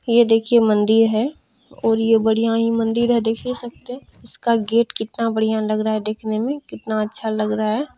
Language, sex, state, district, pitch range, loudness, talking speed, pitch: Maithili, female, Bihar, Madhepura, 220-235 Hz, -19 LUFS, 210 wpm, 225 Hz